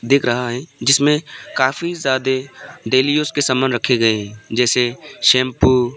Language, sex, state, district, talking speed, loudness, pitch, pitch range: Hindi, male, Arunachal Pradesh, Papum Pare, 160 wpm, -17 LUFS, 130 Hz, 120-140 Hz